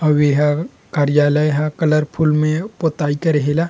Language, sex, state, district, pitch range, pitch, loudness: Chhattisgarhi, male, Chhattisgarh, Rajnandgaon, 150-160 Hz, 150 Hz, -17 LUFS